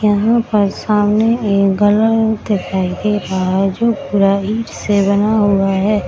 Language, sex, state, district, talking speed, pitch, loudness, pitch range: Hindi, female, Bihar, Samastipur, 150 wpm, 205 Hz, -15 LUFS, 195-215 Hz